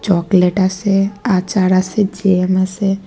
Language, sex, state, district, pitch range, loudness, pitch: Bengali, female, Tripura, West Tripura, 185-195 Hz, -15 LUFS, 190 Hz